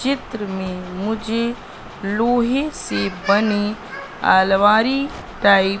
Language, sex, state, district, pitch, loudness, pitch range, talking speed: Hindi, female, Madhya Pradesh, Katni, 210 Hz, -19 LUFS, 195-240 Hz, 95 wpm